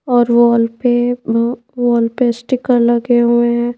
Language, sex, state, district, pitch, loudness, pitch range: Hindi, female, Madhya Pradesh, Bhopal, 240 Hz, -14 LUFS, 235-245 Hz